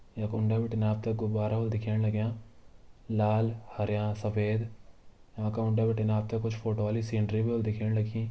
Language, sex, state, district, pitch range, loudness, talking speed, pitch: Garhwali, male, Uttarakhand, Tehri Garhwal, 105-110 Hz, -30 LUFS, 190 wpm, 110 Hz